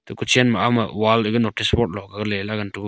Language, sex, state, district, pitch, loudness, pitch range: Wancho, male, Arunachal Pradesh, Longding, 110 Hz, -20 LUFS, 105-115 Hz